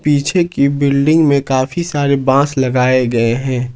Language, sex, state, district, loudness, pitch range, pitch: Hindi, male, Jharkhand, Ranchi, -14 LUFS, 130-145 Hz, 140 Hz